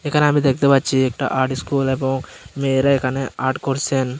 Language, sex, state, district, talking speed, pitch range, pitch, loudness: Bengali, male, Tripura, Unakoti, 170 wpm, 130-140 Hz, 135 Hz, -19 LUFS